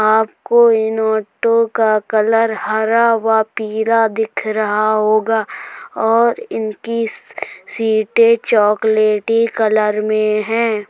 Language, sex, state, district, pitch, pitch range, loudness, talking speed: Hindi, female, Uttar Pradesh, Jalaun, 220 Hz, 215-225 Hz, -15 LUFS, 105 wpm